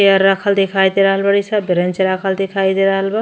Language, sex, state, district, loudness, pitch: Bhojpuri, female, Uttar Pradesh, Ghazipur, -15 LUFS, 195 Hz